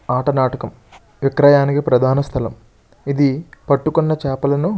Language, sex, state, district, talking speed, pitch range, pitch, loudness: Telugu, male, Andhra Pradesh, Srikakulam, 115 wpm, 125-145 Hz, 140 Hz, -17 LUFS